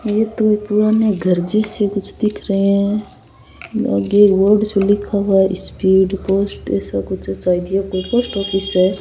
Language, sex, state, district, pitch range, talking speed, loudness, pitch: Rajasthani, female, Rajasthan, Churu, 185-210 Hz, 160 wpm, -17 LUFS, 195 Hz